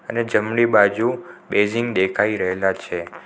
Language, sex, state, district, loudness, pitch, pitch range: Gujarati, male, Gujarat, Navsari, -20 LUFS, 105 Hz, 95-120 Hz